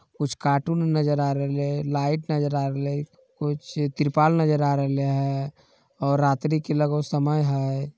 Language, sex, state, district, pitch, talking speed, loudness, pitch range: Magahi, male, Bihar, Jamui, 145 Hz, 175 wpm, -24 LUFS, 140-150 Hz